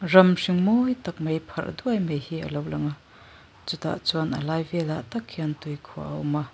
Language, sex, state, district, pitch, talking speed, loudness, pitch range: Mizo, female, Mizoram, Aizawl, 155 Hz, 230 wpm, -26 LUFS, 135-175 Hz